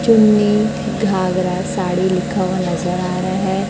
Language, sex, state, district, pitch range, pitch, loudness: Hindi, female, Chhattisgarh, Raipur, 180-205 Hz, 185 Hz, -17 LUFS